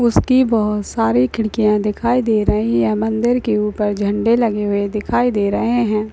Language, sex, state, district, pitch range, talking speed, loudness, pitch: Hindi, female, Rajasthan, Churu, 205-235 Hz, 175 wpm, -17 LUFS, 215 Hz